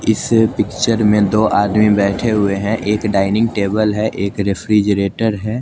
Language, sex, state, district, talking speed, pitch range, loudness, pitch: Hindi, male, Chandigarh, Chandigarh, 160 wpm, 100-110 Hz, -15 LUFS, 105 Hz